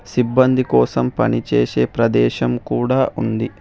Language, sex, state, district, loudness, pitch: Telugu, male, Telangana, Hyderabad, -17 LUFS, 80 Hz